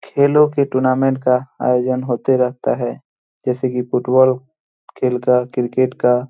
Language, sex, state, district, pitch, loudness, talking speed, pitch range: Hindi, male, Bihar, Jamui, 130 Hz, -17 LUFS, 150 wpm, 125-130 Hz